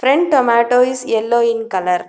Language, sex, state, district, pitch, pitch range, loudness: English, female, Telangana, Hyderabad, 235 Hz, 225-255 Hz, -15 LUFS